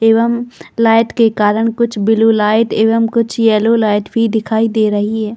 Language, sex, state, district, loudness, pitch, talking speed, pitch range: Hindi, female, Chhattisgarh, Balrampur, -13 LUFS, 225 Hz, 190 wpm, 215-230 Hz